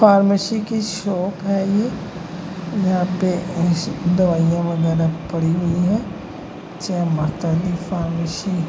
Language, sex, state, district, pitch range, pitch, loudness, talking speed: Hindi, male, Uttar Pradesh, Jalaun, 170-195 Hz, 180 Hz, -20 LUFS, 115 wpm